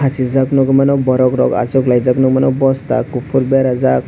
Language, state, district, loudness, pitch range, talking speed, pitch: Kokborok, Tripura, West Tripura, -13 LUFS, 125-135 Hz, 190 wpm, 130 Hz